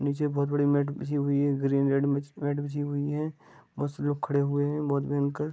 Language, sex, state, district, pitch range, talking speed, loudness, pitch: Hindi, male, Bihar, Gopalganj, 140-145 Hz, 230 wpm, -28 LUFS, 145 Hz